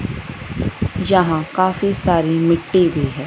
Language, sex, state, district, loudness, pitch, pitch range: Hindi, female, Punjab, Fazilka, -17 LUFS, 170 Hz, 160-185 Hz